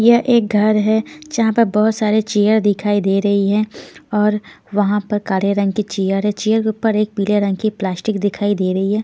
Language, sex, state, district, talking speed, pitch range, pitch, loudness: Hindi, female, Punjab, Pathankot, 220 wpm, 200-220 Hz, 210 Hz, -17 LUFS